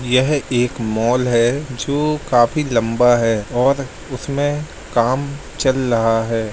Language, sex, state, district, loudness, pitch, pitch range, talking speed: Hindi, male, Bihar, Lakhisarai, -18 LUFS, 125 Hz, 115-140 Hz, 140 wpm